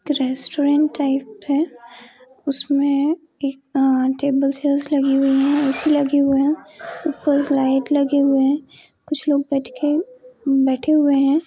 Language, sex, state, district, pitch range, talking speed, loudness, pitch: Hindi, female, Jharkhand, Sahebganj, 270-295 Hz, 135 wpm, -19 LUFS, 280 Hz